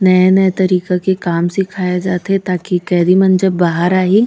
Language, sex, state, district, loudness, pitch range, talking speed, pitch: Chhattisgarhi, female, Chhattisgarh, Raigarh, -14 LUFS, 180-190 Hz, 170 wpm, 185 Hz